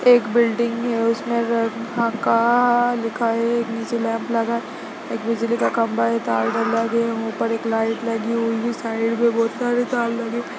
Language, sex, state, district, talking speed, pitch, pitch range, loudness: Hindi, male, Chhattisgarh, Bastar, 195 wpm, 230 Hz, 230-235 Hz, -21 LUFS